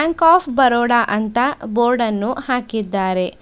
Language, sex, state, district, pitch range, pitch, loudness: Kannada, female, Karnataka, Bidar, 215-260 Hz, 240 Hz, -17 LUFS